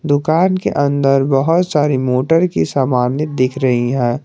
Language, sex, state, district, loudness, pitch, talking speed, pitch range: Hindi, male, Jharkhand, Garhwa, -15 LUFS, 135 Hz, 155 wpm, 130-150 Hz